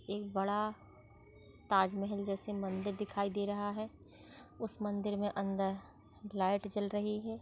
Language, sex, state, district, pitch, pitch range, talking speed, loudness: Hindi, female, Chhattisgarh, Raigarh, 200 Hz, 195-205 Hz, 135 wpm, -37 LUFS